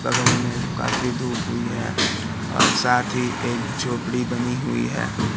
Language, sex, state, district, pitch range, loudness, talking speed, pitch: Hindi, male, Madhya Pradesh, Katni, 105-125 Hz, -22 LUFS, 155 wpm, 120 Hz